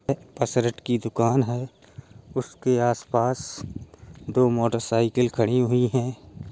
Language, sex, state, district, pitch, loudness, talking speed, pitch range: Hindi, male, Uttar Pradesh, Jalaun, 120 Hz, -24 LUFS, 110 wpm, 115-125 Hz